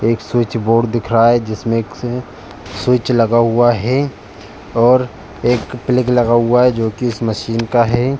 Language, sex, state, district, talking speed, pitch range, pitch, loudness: Hindi, male, Uttar Pradesh, Jalaun, 175 wpm, 115-125 Hz, 115 Hz, -15 LUFS